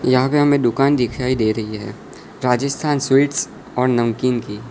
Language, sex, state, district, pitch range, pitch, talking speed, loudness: Hindi, male, Gujarat, Valsad, 120-140 Hz, 125 Hz, 165 wpm, -18 LUFS